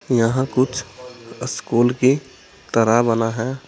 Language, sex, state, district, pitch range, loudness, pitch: Hindi, male, Uttar Pradesh, Saharanpur, 115-130 Hz, -19 LUFS, 125 Hz